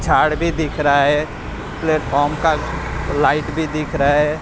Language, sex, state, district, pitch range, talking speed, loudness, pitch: Hindi, male, Maharashtra, Mumbai Suburban, 145-155 Hz, 165 wpm, -18 LUFS, 150 Hz